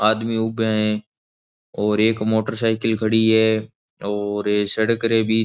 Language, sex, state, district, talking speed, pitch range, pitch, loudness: Marwari, male, Rajasthan, Nagaur, 145 wpm, 105-110 Hz, 110 Hz, -20 LUFS